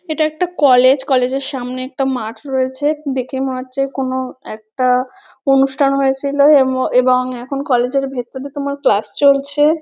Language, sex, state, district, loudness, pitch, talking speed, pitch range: Bengali, female, West Bengal, North 24 Parganas, -16 LUFS, 270 Hz, 145 wpm, 255-280 Hz